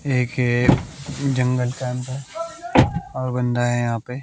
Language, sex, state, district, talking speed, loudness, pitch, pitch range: Hindi, male, Bihar, West Champaran, 140 wpm, -21 LUFS, 125 Hz, 125-140 Hz